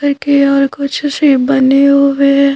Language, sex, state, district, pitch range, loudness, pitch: Hindi, female, Madhya Pradesh, Bhopal, 275-285 Hz, -11 LUFS, 280 Hz